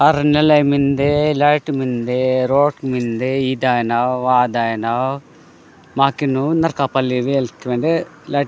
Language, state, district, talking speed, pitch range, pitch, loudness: Gondi, Chhattisgarh, Sukma, 135 wpm, 125-145 Hz, 135 Hz, -17 LUFS